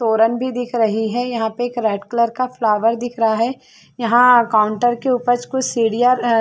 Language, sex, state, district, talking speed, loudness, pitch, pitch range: Hindi, female, Chhattisgarh, Bilaspur, 195 wpm, -17 LUFS, 235 Hz, 225-245 Hz